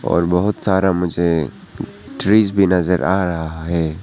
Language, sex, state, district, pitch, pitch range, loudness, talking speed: Hindi, male, Arunachal Pradesh, Papum Pare, 90 Hz, 85-95 Hz, -17 LUFS, 150 wpm